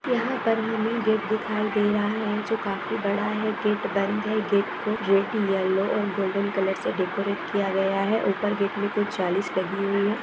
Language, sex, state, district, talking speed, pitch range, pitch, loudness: Hindi, female, Uttar Pradesh, Etah, 210 wpm, 195-215 Hz, 205 Hz, -25 LUFS